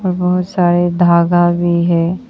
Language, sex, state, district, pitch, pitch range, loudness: Hindi, female, Arunachal Pradesh, Papum Pare, 175 Hz, 175-180 Hz, -13 LUFS